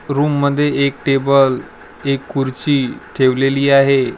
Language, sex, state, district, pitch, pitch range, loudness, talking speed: Marathi, male, Maharashtra, Gondia, 140 Hz, 135-140 Hz, -16 LUFS, 115 wpm